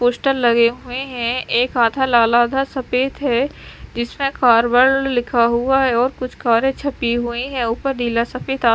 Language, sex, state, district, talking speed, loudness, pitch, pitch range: Hindi, female, Chandigarh, Chandigarh, 170 wpm, -18 LUFS, 245 Hz, 235-270 Hz